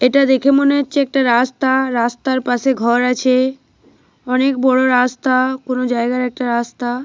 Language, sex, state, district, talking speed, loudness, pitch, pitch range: Bengali, female, Jharkhand, Jamtara, 145 wpm, -16 LUFS, 255 Hz, 245-265 Hz